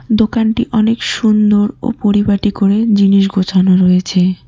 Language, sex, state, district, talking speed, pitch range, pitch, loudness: Bengali, female, West Bengal, Cooch Behar, 120 wpm, 190-220 Hz, 205 Hz, -12 LUFS